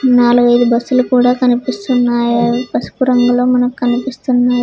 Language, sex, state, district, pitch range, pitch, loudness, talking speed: Telugu, female, Telangana, Hyderabad, 240-250 Hz, 245 Hz, -13 LUFS, 105 wpm